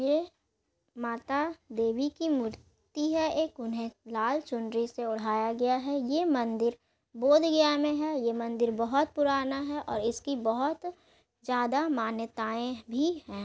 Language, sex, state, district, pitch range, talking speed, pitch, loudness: Magahi, female, Bihar, Gaya, 230-295 Hz, 145 wpm, 255 Hz, -30 LUFS